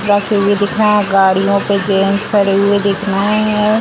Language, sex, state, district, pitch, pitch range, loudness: Hindi, female, Bihar, Sitamarhi, 200 Hz, 195-210 Hz, -13 LUFS